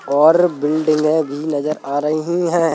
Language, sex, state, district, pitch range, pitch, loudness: Hindi, male, Madhya Pradesh, Bhopal, 145-160 Hz, 155 Hz, -17 LUFS